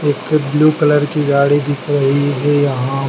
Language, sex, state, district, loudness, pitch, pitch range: Hindi, male, Madhya Pradesh, Dhar, -14 LUFS, 145 Hz, 140-150 Hz